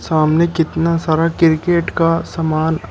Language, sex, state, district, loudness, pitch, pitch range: Hindi, male, Uttar Pradesh, Shamli, -16 LUFS, 165 Hz, 160-170 Hz